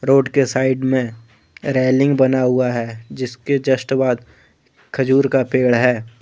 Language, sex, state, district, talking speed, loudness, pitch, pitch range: Hindi, male, Jharkhand, Deoghar, 145 wpm, -17 LUFS, 130 Hz, 120-135 Hz